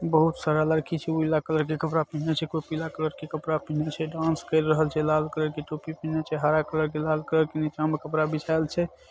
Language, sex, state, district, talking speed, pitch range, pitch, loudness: Maithili, male, Bihar, Saharsa, 250 wpm, 155-160 Hz, 155 Hz, -27 LUFS